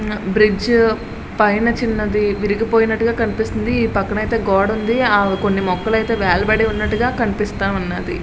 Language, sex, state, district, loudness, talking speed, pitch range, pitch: Telugu, female, Andhra Pradesh, Srikakulam, -17 LUFS, 130 wpm, 205-225 Hz, 215 Hz